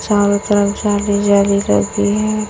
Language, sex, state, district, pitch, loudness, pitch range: Hindi, female, Chhattisgarh, Raipur, 205 Hz, -15 LUFS, 200-205 Hz